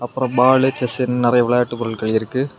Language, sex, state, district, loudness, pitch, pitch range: Tamil, male, Tamil Nadu, Kanyakumari, -17 LUFS, 125 Hz, 120-130 Hz